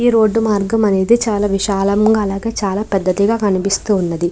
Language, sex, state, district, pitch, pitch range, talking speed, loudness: Telugu, female, Andhra Pradesh, Krishna, 205 Hz, 195-220 Hz, 155 wpm, -15 LUFS